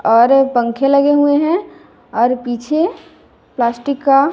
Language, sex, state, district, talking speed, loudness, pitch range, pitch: Hindi, female, Chhattisgarh, Raipur, 125 wpm, -15 LUFS, 240-290 Hz, 275 Hz